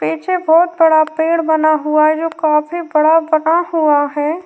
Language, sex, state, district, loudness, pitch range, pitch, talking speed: Hindi, female, Uttar Pradesh, Jyotiba Phule Nagar, -14 LUFS, 305-330 Hz, 315 Hz, 175 wpm